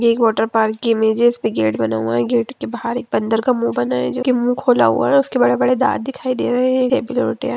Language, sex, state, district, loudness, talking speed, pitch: Hindi, female, Bihar, Gaya, -17 LUFS, 270 wpm, 230 Hz